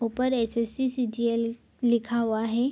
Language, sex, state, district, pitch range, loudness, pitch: Hindi, female, Bihar, East Champaran, 230-250 Hz, -27 LUFS, 235 Hz